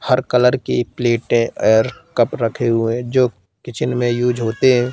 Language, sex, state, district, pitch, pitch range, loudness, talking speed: Hindi, male, Madhya Pradesh, Katni, 120 Hz, 115-125 Hz, -17 LUFS, 170 wpm